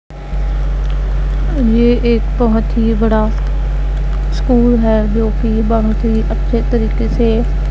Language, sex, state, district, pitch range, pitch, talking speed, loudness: Hindi, female, Punjab, Pathankot, 210-235 Hz, 225 Hz, 115 wpm, -15 LUFS